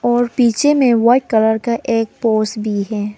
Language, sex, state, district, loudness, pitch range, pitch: Hindi, female, Arunachal Pradesh, Papum Pare, -15 LUFS, 215-240 Hz, 230 Hz